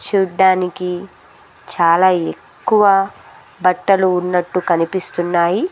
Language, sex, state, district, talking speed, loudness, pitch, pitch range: Telugu, female, Andhra Pradesh, Sri Satya Sai, 65 wpm, -16 LUFS, 180 Hz, 175-190 Hz